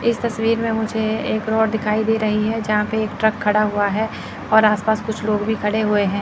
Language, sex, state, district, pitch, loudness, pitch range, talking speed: Hindi, male, Chandigarh, Chandigarh, 220 Hz, -19 LUFS, 210-220 Hz, 240 wpm